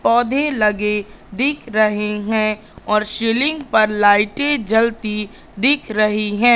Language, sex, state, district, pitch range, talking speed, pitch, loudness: Hindi, female, Madhya Pradesh, Katni, 210-240 Hz, 120 wpm, 215 Hz, -17 LUFS